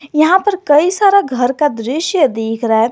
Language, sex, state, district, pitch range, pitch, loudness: Hindi, male, Jharkhand, Garhwa, 245-365 Hz, 295 Hz, -13 LUFS